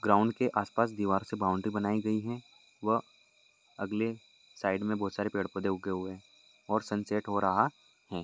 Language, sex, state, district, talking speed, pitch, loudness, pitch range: Hindi, male, Maharashtra, Solapur, 190 wpm, 105 Hz, -32 LUFS, 95-110 Hz